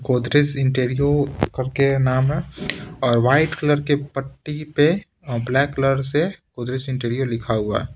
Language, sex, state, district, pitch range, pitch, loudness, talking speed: Hindi, male, Bihar, Patna, 130-150 Hz, 135 Hz, -21 LUFS, 150 wpm